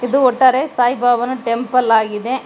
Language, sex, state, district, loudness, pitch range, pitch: Kannada, female, Karnataka, Koppal, -15 LUFS, 235-260 Hz, 250 Hz